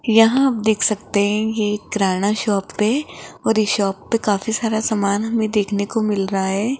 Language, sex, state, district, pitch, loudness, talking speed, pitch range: Hindi, female, Rajasthan, Jaipur, 215 Hz, -19 LUFS, 205 wpm, 200-220 Hz